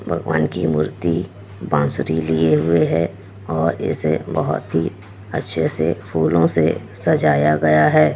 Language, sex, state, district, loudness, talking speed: Hindi, female, Bihar, Kishanganj, -18 LUFS, 130 wpm